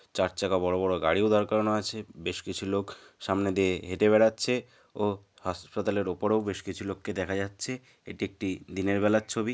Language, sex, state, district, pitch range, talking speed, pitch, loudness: Bengali, male, West Bengal, North 24 Parganas, 95-105 Hz, 170 wpm, 100 Hz, -29 LUFS